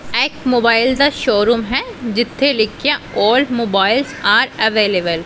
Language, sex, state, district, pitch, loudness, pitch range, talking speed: Punjabi, female, Punjab, Pathankot, 235 Hz, -15 LUFS, 220-260 Hz, 150 wpm